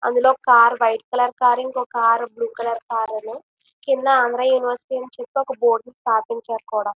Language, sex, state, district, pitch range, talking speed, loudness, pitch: Telugu, female, Andhra Pradesh, Visakhapatnam, 230-255 Hz, 145 wpm, -20 LUFS, 240 Hz